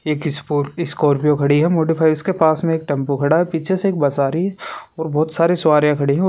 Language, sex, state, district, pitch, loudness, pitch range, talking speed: Hindi, male, Rajasthan, Churu, 155 Hz, -17 LUFS, 145-165 Hz, 230 wpm